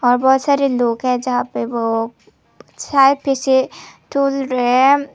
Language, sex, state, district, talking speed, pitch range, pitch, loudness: Hindi, female, Tripura, Unakoti, 150 wpm, 245-275 Hz, 260 Hz, -16 LUFS